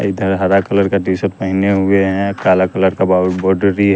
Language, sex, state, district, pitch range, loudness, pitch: Hindi, male, Bihar, West Champaran, 95-100 Hz, -14 LUFS, 95 Hz